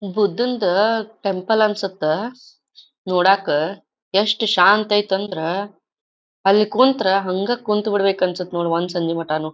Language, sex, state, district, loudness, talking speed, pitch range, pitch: Kannada, female, Karnataka, Dharwad, -19 LUFS, 115 wpm, 180-215 Hz, 195 Hz